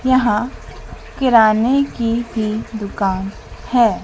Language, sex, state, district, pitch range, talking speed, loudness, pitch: Hindi, female, Madhya Pradesh, Dhar, 215-245 Hz, 90 wpm, -17 LUFS, 230 Hz